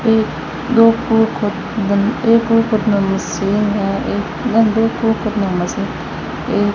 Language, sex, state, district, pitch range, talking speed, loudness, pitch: Hindi, female, Rajasthan, Bikaner, 205-225 Hz, 60 wpm, -16 LUFS, 220 Hz